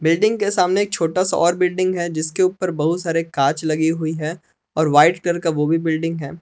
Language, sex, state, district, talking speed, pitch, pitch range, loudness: Hindi, male, Jharkhand, Palamu, 225 wpm, 165 Hz, 160-180 Hz, -19 LUFS